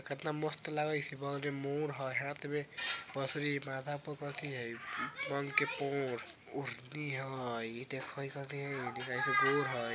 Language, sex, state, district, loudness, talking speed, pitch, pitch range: Bajjika, male, Bihar, Vaishali, -37 LUFS, 85 wpm, 140 Hz, 135-145 Hz